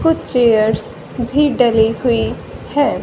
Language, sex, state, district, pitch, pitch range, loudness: Hindi, female, Haryana, Rohtak, 240 Hz, 225-290 Hz, -15 LUFS